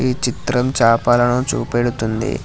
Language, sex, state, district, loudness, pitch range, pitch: Telugu, male, Telangana, Hyderabad, -17 LUFS, 115-125 Hz, 120 Hz